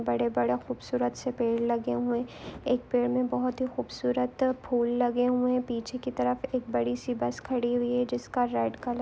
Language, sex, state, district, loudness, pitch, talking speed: Hindi, female, Maharashtra, Aurangabad, -29 LUFS, 240 Hz, 205 wpm